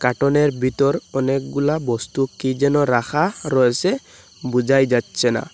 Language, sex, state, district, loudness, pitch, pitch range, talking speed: Bengali, male, Assam, Hailakandi, -19 LUFS, 135 Hz, 125-145 Hz, 120 wpm